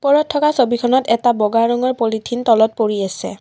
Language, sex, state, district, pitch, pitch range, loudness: Assamese, female, Assam, Kamrup Metropolitan, 235 Hz, 220-255 Hz, -16 LUFS